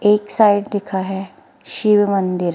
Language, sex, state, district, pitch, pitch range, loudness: Hindi, female, Himachal Pradesh, Shimla, 205 Hz, 190-210 Hz, -17 LUFS